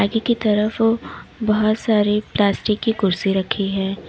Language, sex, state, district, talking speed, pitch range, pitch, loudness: Hindi, female, Uttar Pradesh, Lalitpur, 145 wpm, 200-220 Hz, 210 Hz, -19 LUFS